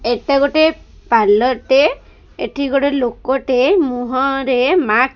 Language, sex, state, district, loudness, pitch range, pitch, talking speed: Odia, female, Odisha, Khordha, -15 LUFS, 255-285 Hz, 270 Hz, 130 wpm